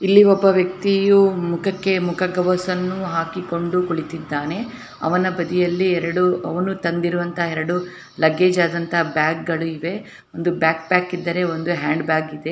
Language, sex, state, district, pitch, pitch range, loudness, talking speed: Kannada, female, Karnataka, Dharwad, 175 Hz, 165-185 Hz, -20 LUFS, 125 wpm